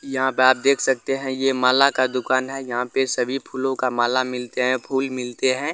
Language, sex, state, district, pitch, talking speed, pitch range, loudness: Hindi, male, Bihar, Araria, 130 Hz, 230 wpm, 125-135 Hz, -21 LUFS